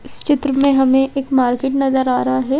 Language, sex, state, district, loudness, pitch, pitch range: Hindi, female, Madhya Pradesh, Bhopal, -16 LUFS, 270 Hz, 260-275 Hz